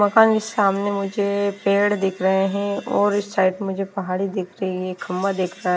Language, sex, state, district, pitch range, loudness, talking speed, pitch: Hindi, female, Himachal Pradesh, Shimla, 190-205 Hz, -21 LUFS, 210 wpm, 195 Hz